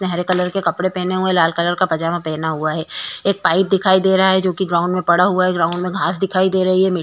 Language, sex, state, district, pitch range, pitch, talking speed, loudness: Hindi, female, Uttar Pradesh, Jyotiba Phule Nagar, 170-190 Hz, 185 Hz, 310 wpm, -17 LUFS